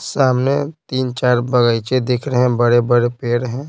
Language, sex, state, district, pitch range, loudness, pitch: Hindi, male, Bihar, Patna, 120-130 Hz, -17 LUFS, 125 Hz